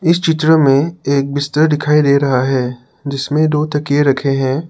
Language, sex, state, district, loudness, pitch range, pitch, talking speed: Hindi, male, Assam, Sonitpur, -14 LUFS, 135-155 Hz, 145 Hz, 180 wpm